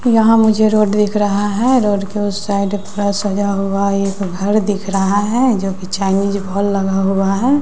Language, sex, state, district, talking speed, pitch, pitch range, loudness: Hindi, female, Bihar, West Champaran, 205 wpm, 200 Hz, 195-210 Hz, -15 LUFS